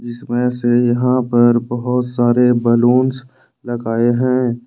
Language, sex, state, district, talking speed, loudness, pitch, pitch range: Hindi, male, Jharkhand, Ranchi, 115 wpm, -15 LUFS, 120 Hz, 120-125 Hz